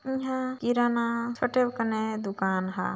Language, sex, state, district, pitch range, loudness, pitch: Hindi, female, Chhattisgarh, Balrampur, 200-250 Hz, -28 LUFS, 235 Hz